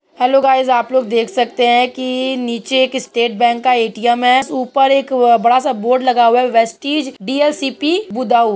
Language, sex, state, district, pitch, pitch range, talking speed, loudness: Hindi, female, Uttar Pradesh, Budaun, 250 Hz, 240-265 Hz, 180 wpm, -14 LUFS